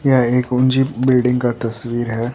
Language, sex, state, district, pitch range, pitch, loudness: Hindi, male, Uttar Pradesh, Etah, 120-130 Hz, 125 Hz, -17 LUFS